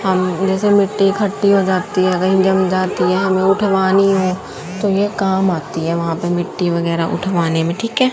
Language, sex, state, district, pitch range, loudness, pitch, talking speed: Hindi, female, Haryana, Charkhi Dadri, 175-195 Hz, -16 LUFS, 190 Hz, 190 wpm